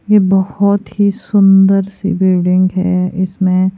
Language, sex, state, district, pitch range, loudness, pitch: Hindi, female, Himachal Pradesh, Shimla, 185-200 Hz, -13 LUFS, 190 Hz